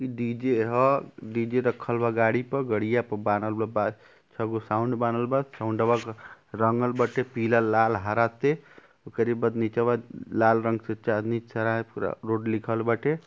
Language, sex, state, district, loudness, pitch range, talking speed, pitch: Bhojpuri, male, Uttar Pradesh, Ghazipur, -26 LUFS, 110-120 Hz, 165 wpm, 115 Hz